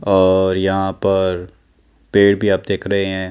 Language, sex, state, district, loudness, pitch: Hindi, male, Chandigarh, Chandigarh, -16 LUFS, 95 Hz